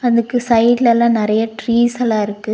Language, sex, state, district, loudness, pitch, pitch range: Tamil, female, Tamil Nadu, Nilgiris, -15 LUFS, 235 Hz, 220-240 Hz